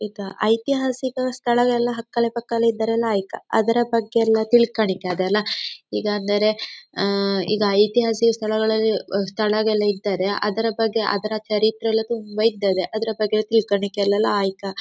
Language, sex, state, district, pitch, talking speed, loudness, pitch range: Kannada, female, Karnataka, Dakshina Kannada, 220 Hz, 130 wpm, -21 LUFS, 205-230 Hz